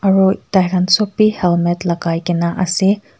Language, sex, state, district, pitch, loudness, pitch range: Nagamese, female, Nagaland, Kohima, 185 Hz, -15 LUFS, 175-195 Hz